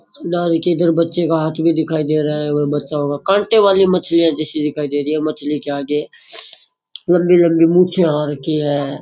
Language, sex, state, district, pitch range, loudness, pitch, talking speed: Rajasthani, male, Rajasthan, Churu, 150-170 Hz, -16 LUFS, 155 Hz, 205 wpm